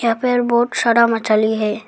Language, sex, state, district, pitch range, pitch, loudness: Hindi, female, Arunachal Pradesh, Lower Dibang Valley, 220-240 Hz, 230 Hz, -16 LUFS